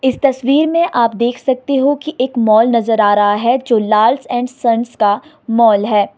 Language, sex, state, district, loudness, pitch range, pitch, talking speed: Hindi, female, Himachal Pradesh, Shimla, -14 LUFS, 215-265 Hz, 235 Hz, 195 wpm